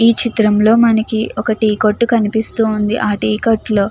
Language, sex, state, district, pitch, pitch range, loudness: Telugu, female, Andhra Pradesh, Chittoor, 220 Hz, 215-225 Hz, -14 LUFS